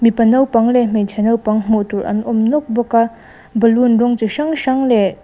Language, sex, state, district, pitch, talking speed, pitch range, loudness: Mizo, female, Mizoram, Aizawl, 230 Hz, 205 wpm, 220-240 Hz, -15 LUFS